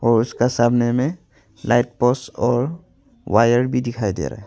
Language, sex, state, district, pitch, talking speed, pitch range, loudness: Hindi, male, Arunachal Pradesh, Longding, 120 Hz, 175 wpm, 115-125 Hz, -19 LUFS